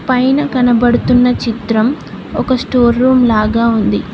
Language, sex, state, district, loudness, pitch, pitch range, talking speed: Telugu, female, Telangana, Mahabubabad, -12 LUFS, 245 Hz, 230-255 Hz, 115 wpm